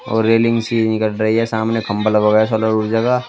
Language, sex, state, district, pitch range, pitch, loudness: Hindi, male, Uttar Pradesh, Shamli, 110-115 Hz, 110 Hz, -16 LUFS